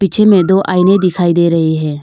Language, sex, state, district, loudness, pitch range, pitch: Hindi, female, Arunachal Pradesh, Longding, -11 LUFS, 170-195 Hz, 180 Hz